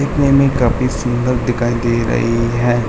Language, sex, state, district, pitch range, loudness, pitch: Hindi, male, Uttar Pradesh, Hamirpur, 120-125 Hz, -15 LUFS, 120 Hz